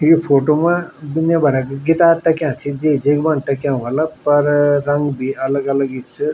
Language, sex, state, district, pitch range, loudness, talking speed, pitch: Garhwali, male, Uttarakhand, Tehri Garhwal, 140-155 Hz, -16 LUFS, 190 wpm, 145 Hz